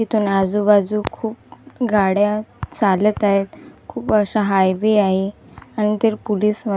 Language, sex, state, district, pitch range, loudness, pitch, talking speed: Marathi, female, Maharashtra, Gondia, 195-215 Hz, -18 LUFS, 210 Hz, 95 wpm